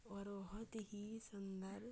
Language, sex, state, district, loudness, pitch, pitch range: Hindi, female, Uttar Pradesh, Budaun, -51 LUFS, 205 Hz, 200-220 Hz